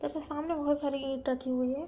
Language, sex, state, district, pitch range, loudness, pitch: Hindi, female, Uttar Pradesh, Budaun, 265-300 Hz, -32 LUFS, 280 Hz